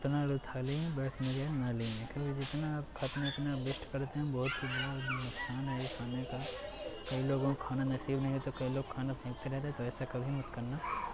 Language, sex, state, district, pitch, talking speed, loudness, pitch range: Hindi, male, Uttar Pradesh, Hamirpur, 135 Hz, 235 wpm, -37 LUFS, 130-140 Hz